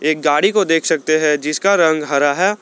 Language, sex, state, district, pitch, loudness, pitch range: Hindi, male, Jharkhand, Garhwa, 155 Hz, -15 LUFS, 150-190 Hz